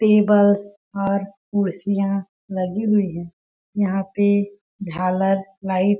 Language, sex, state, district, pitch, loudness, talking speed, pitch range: Hindi, female, Chhattisgarh, Balrampur, 200 Hz, -21 LUFS, 110 wpm, 195-205 Hz